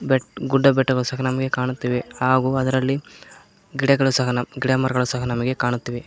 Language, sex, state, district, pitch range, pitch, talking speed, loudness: Kannada, male, Karnataka, Koppal, 125-135 Hz, 130 Hz, 140 wpm, -21 LUFS